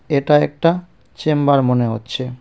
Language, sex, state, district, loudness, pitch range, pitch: Bengali, male, West Bengal, Cooch Behar, -17 LUFS, 125-150 Hz, 140 Hz